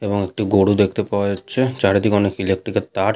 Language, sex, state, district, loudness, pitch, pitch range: Bengali, male, West Bengal, Malda, -19 LUFS, 100 Hz, 100-105 Hz